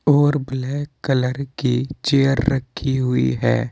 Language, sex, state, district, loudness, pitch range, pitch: Hindi, male, Uttar Pradesh, Saharanpur, -20 LUFS, 125-140 Hz, 135 Hz